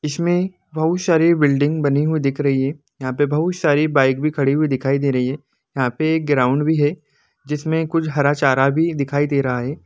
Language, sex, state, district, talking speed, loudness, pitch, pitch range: Hindi, male, Jharkhand, Jamtara, 220 wpm, -18 LUFS, 145 Hz, 140-160 Hz